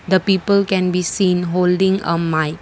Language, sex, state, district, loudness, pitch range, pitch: English, female, Assam, Kamrup Metropolitan, -17 LUFS, 175-190 Hz, 180 Hz